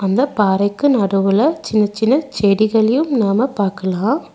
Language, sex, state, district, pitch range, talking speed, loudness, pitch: Tamil, female, Tamil Nadu, Nilgiris, 200-265 Hz, 110 wpm, -16 LUFS, 215 Hz